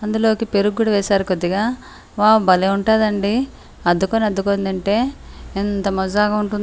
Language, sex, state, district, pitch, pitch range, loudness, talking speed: Telugu, female, Andhra Pradesh, Anantapur, 205 Hz, 195-220 Hz, -18 LUFS, 125 wpm